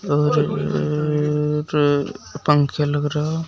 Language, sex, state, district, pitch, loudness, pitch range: Hindi, male, Uttar Pradesh, Shamli, 150 Hz, -20 LUFS, 145-150 Hz